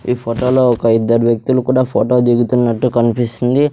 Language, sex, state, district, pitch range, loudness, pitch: Telugu, male, Andhra Pradesh, Sri Satya Sai, 115-125 Hz, -14 LUFS, 125 Hz